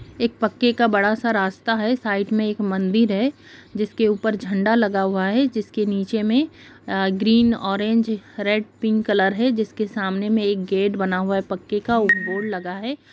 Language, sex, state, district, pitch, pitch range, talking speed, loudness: Hindi, female, Bihar, Jamui, 210 Hz, 195-225 Hz, 190 wpm, -21 LUFS